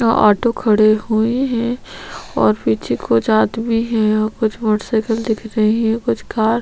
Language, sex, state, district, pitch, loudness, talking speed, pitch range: Hindi, female, Chhattisgarh, Sukma, 220 Hz, -17 LUFS, 155 wpm, 215-230 Hz